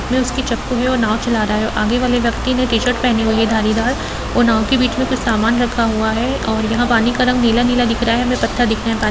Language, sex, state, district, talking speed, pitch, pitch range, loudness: Hindi, female, Bihar, Gopalganj, 290 wpm, 235 Hz, 225-250 Hz, -16 LUFS